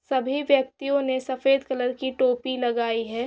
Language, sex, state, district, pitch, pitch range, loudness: Hindi, female, Bihar, Saran, 260 Hz, 250-270 Hz, -24 LUFS